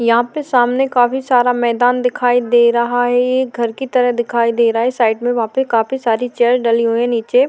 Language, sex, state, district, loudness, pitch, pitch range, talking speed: Hindi, female, Maharashtra, Chandrapur, -15 LUFS, 245 Hz, 235-250 Hz, 240 wpm